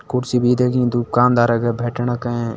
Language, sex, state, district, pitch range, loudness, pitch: Hindi, male, Uttarakhand, Tehri Garhwal, 120-125 Hz, -18 LUFS, 120 Hz